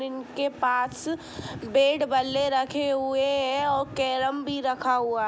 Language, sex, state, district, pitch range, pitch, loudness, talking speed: Hindi, female, Bihar, Gopalganj, 260-280 Hz, 270 Hz, -26 LUFS, 150 wpm